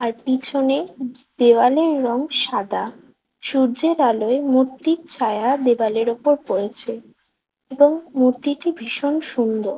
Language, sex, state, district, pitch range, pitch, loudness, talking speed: Bengali, female, West Bengal, Kolkata, 235-285 Hz, 260 Hz, -19 LUFS, 100 wpm